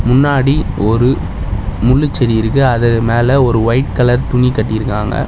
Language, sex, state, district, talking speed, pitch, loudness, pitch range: Tamil, male, Tamil Nadu, Chennai, 125 wpm, 120 Hz, -13 LUFS, 110-130 Hz